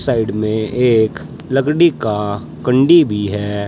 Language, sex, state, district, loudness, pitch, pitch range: Hindi, male, Uttar Pradesh, Saharanpur, -15 LUFS, 110 Hz, 105-130 Hz